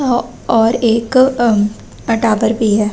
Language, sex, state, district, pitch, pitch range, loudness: Hindi, female, Chhattisgarh, Raigarh, 230 Hz, 220-240 Hz, -14 LUFS